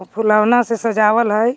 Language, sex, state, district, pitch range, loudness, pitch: Magahi, female, Jharkhand, Palamu, 215-235 Hz, -15 LUFS, 220 Hz